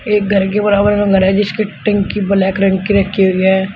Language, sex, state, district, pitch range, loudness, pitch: Hindi, male, Uttar Pradesh, Shamli, 190-205 Hz, -13 LUFS, 200 Hz